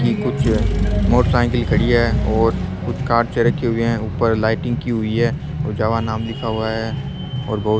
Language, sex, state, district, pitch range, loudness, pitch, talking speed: Rajasthani, male, Rajasthan, Churu, 110-120 Hz, -19 LUFS, 115 Hz, 190 wpm